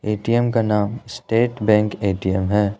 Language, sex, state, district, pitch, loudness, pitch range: Hindi, male, Arunachal Pradesh, Lower Dibang Valley, 105 Hz, -20 LUFS, 105-115 Hz